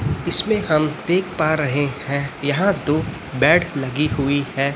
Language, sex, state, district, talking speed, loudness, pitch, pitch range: Hindi, male, Chhattisgarh, Raipur, 150 wpm, -20 LUFS, 150 Hz, 140-165 Hz